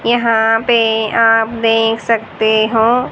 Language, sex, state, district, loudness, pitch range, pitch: Hindi, female, Haryana, Jhajjar, -13 LUFS, 220-230 Hz, 225 Hz